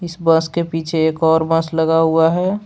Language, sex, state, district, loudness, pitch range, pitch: Hindi, male, Jharkhand, Palamu, -16 LUFS, 160-170 Hz, 165 Hz